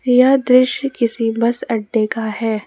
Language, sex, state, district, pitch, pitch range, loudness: Hindi, female, Jharkhand, Ranchi, 235 Hz, 225-255 Hz, -16 LUFS